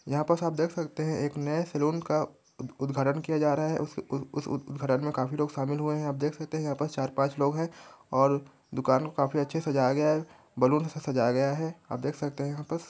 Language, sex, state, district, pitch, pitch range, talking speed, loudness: Hindi, male, Chhattisgarh, Korba, 145 Hz, 135-155 Hz, 250 wpm, -29 LUFS